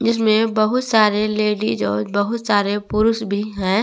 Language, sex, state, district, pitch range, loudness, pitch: Hindi, female, Jharkhand, Garhwa, 205-220 Hz, -18 LUFS, 215 Hz